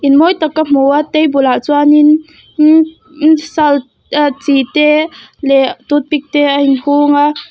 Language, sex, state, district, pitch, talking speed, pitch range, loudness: Mizo, female, Mizoram, Aizawl, 295 Hz, 150 wpm, 280-310 Hz, -11 LUFS